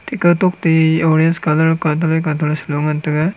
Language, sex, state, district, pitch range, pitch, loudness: Wancho, male, Arunachal Pradesh, Longding, 155-165 Hz, 160 Hz, -15 LUFS